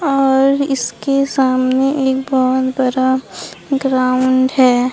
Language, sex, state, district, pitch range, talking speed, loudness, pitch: Hindi, female, Bihar, Katihar, 255-270 Hz, 95 wpm, -15 LUFS, 260 Hz